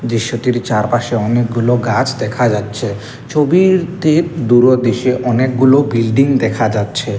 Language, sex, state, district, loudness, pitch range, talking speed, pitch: Bengali, male, Assam, Kamrup Metropolitan, -14 LUFS, 115-130 Hz, 100 wpm, 120 Hz